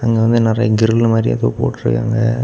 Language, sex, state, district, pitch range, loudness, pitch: Tamil, male, Tamil Nadu, Kanyakumari, 110-115 Hz, -15 LUFS, 115 Hz